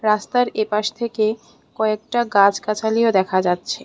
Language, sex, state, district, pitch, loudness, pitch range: Bengali, female, Tripura, West Tripura, 215 Hz, -19 LUFS, 205-230 Hz